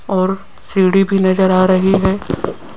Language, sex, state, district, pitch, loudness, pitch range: Hindi, female, Rajasthan, Jaipur, 190 Hz, -14 LUFS, 185-195 Hz